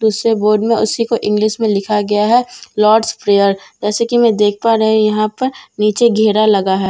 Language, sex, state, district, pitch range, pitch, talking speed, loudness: Hindi, female, Bihar, Katihar, 210-230 Hz, 215 Hz, 215 wpm, -14 LUFS